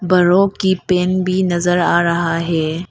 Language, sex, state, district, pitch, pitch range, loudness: Hindi, female, Arunachal Pradesh, Lower Dibang Valley, 175 Hz, 170-185 Hz, -16 LUFS